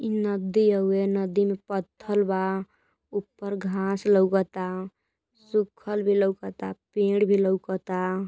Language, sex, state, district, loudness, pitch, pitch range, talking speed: Bhojpuri, female, Uttar Pradesh, Gorakhpur, -26 LUFS, 195 Hz, 190-205 Hz, 115 wpm